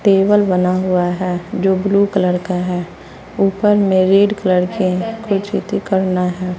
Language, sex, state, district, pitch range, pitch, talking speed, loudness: Hindi, female, Bihar, West Champaran, 180-200 Hz, 185 Hz, 145 wpm, -16 LUFS